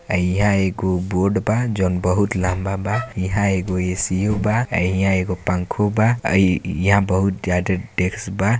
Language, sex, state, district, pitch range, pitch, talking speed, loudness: Hindi, male, Bihar, Gopalganj, 90-100 Hz, 95 Hz, 155 wpm, -20 LUFS